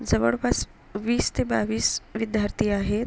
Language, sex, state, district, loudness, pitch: Marathi, female, Maharashtra, Sindhudurg, -25 LUFS, 200 Hz